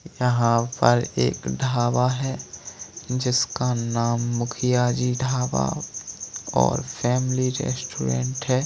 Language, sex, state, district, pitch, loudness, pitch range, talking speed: Hindi, male, Bihar, East Champaran, 125 Hz, -23 LUFS, 115-130 Hz, 95 wpm